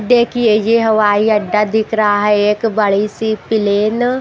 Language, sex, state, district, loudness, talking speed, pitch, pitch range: Hindi, female, Haryana, Jhajjar, -14 LUFS, 170 wpm, 215 Hz, 210-225 Hz